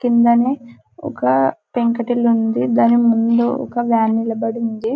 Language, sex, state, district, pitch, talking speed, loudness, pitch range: Telugu, male, Telangana, Karimnagar, 230 Hz, 110 wpm, -17 LUFS, 220-240 Hz